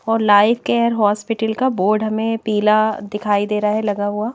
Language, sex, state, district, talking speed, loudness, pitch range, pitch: Hindi, female, Madhya Pradesh, Bhopal, 195 wpm, -17 LUFS, 210-225 Hz, 215 Hz